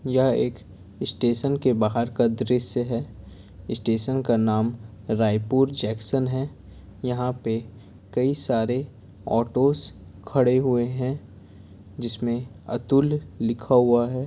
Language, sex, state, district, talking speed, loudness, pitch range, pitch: Hindi, male, Chhattisgarh, Korba, 115 wpm, -24 LUFS, 105-130 Hz, 120 Hz